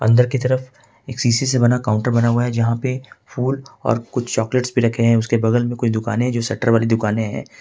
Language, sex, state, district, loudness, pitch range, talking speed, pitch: Hindi, male, Jharkhand, Ranchi, -19 LUFS, 115-125 Hz, 245 wpm, 120 Hz